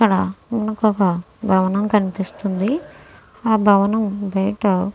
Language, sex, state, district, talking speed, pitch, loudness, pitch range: Telugu, female, Andhra Pradesh, Krishna, 85 wpm, 200 Hz, -19 LUFS, 195-215 Hz